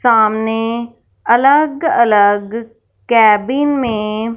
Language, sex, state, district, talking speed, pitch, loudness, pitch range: Hindi, female, Punjab, Fazilka, 70 wpm, 230 Hz, -13 LUFS, 220-245 Hz